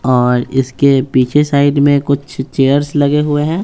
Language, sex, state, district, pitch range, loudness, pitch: Hindi, male, Bihar, Patna, 130-145 Hz, -13 LUFS, 140 Hz